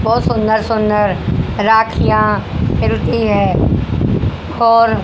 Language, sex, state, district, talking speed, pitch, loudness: Hindi, female, Haryana, Jhajjar, 85 wpm, 210 Hz, -14 LUFS